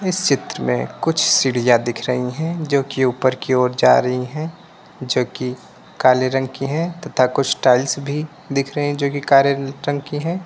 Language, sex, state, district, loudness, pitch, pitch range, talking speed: Hindi, male, Uttar Pradesh, Lucknow, -18 LUFS, 135 Hz, 125-150 Hz, 185 wpm